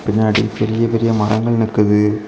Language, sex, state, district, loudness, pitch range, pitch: Tamil, male, Tamil Nadu, Kanyakumari, -16 LUFS, 105-110 Hz, 110 Hz